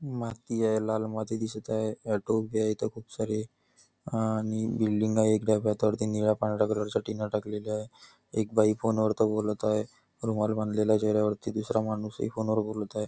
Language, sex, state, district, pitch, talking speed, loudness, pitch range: Marathi, male, Maharashtra, Nagpur, 110 Hz, 180 wpm, -29 LUFS, 105-110 Hz